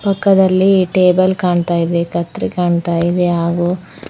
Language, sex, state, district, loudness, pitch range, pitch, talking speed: Kannada, female, Karnataka, Koppal, -14 LUFS, 170-185 Hz, 180 Hz, 130 wpm